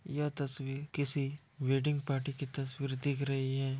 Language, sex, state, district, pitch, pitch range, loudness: Hindi, male, Bihar, Kishanganj, 140 Hz, 135-145 Hz, -36 LUFS